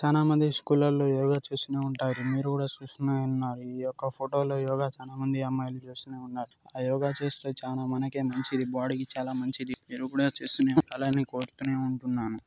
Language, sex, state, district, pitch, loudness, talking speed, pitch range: Telugu, male, Telangana, Nalgonda, 135 Hz, -30 LUFS, 180 wpm, 130-140 Hz